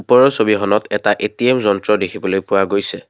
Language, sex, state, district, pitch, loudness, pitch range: Assamese, male, Assam, Kamrup Metropolitan, 105 Hz, -16 LUFS, 100-110 Hz